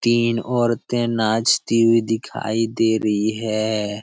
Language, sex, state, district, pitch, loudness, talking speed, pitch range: Hindi, male, Bihar, Jamui, 115 Hz, -20 LUFS, 120 wpm, 110-115 Hz